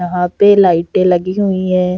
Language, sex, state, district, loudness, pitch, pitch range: Hindi, female, Uttar Pradesh, Jalaun, -12 LUFS, 185 Hz, 180-190 Hz